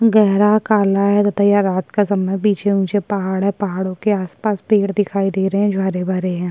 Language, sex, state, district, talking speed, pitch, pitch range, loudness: Hindi, female, Uttarakhand, Tehri Garhwal, 205 wpm, 200 Hz, 190-205 Hz, -17 LUFS